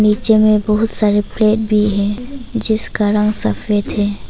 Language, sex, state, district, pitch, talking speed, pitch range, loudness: Hindi, female, Arunachal Pradesh, Papum Pare, 210 Hz, 140 wpm, 205-220 Hz, -15 LUFS